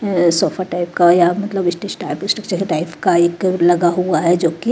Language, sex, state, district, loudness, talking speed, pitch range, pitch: Hindi, female, Haryana, Rohtak, -16 LUFS, 190 wpm, 170-190 Hz, 175 Hz